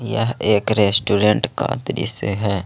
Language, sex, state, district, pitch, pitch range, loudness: Hindi, male, Jharkhand, Ranchi, 105 Hz, 100-110 Hz, -18 LUFS